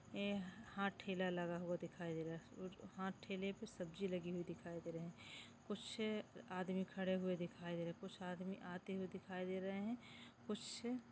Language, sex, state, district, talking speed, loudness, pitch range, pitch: Hindi, male, Chhattisgarh, Rajnandgaon, 195 wpm, -47 LUFS, 175-195 Hz, 185 Hz